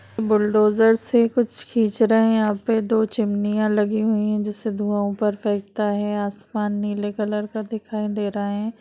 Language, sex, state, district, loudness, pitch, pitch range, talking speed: Hindi, female, Bihar, Madhepura, -21 LUFS, 210 Hz, 205-220 Hz, 175 wpm